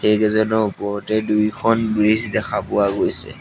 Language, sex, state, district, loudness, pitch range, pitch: Assamese, male, Assam, Sonitpur, -19 LUFS, 105-110 Hz, 110 Hz